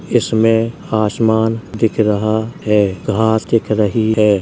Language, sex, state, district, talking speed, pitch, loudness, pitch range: Hindi, male, Uttar Pradesh, Jalaun, 120 wpm, 110 Hz, -15 LUFS, 105-115 Hz